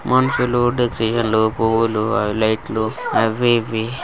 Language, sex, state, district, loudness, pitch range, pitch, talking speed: Telugu, male, Andhra Pradesh, Guntur, -18 LUFS, 110-120 Hz, 115 Hz, 90 wpm